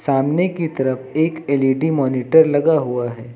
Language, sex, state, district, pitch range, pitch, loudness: Hindi, male, Uttar Pradesh, Lucknow, 130-160 Hz, 140 Hz, -18 LUFS